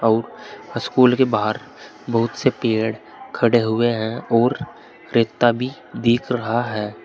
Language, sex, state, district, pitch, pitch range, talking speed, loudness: Hindi, male, Uttar Pradesh, Saharanpur, 115 Hz, 110-125 Hz, 135 wpm, -20 LUFS